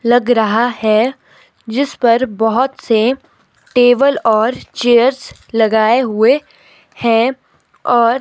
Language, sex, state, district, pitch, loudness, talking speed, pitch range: Hindi, female, Himachal Pradesh, Shimla, 240 Hz, -14 LUFS, 100 wpm, 225-255 Hz